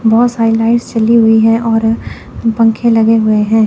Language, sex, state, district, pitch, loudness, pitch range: Hindi, female, Chandigarh, Chandigarh, 225 Hz, -11 LUFS, 225-230 Hz